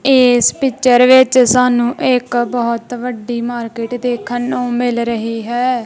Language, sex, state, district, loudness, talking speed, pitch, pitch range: Punjabi, female, Punjab, Kapurthala, -14 LUFS, 135 wpm, 245 Hz, 235-250 Hz